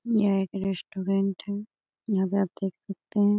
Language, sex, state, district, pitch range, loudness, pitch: Hindi, female, Bihar, Gaya, 195-205 Hz, -28 LUFS, 195 Hz